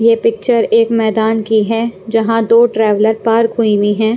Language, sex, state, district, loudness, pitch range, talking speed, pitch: Hindi, female, Punjab, Pathankot, -13 LUFS, 220-230 Hz, 185 wpm, 225 Hz